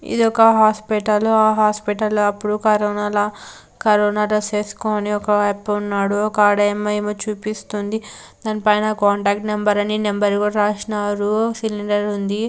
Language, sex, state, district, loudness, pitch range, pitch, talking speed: Telugu, female, Andhra Pradesh, Anantapur, -18 LUFS, 205-215 Hz, 210 Hz, 130 wpm